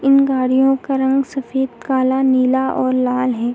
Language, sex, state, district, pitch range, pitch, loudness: Hindi, female, Uttar Pradesh, Hamirpur, 255-270 Hz, 265 Hz, -17 LUFS